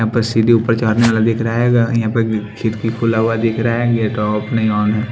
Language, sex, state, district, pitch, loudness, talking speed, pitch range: Hindi, male, Haryana, Jhajjar, 115 Hz, -16 LUFS, 270 wpm, 110-115 Hz